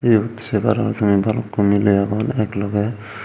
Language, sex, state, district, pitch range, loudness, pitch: Chakma, male, Tripura, Dhalai, 100-110 Hz, -19 LUFS, 105 Hz